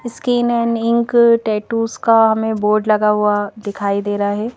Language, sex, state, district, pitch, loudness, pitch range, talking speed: Hindi, female, Madhya Pradesh, Bhopal, 220 Hz, -16 LUFS, 210-235 Hz, 170 wpm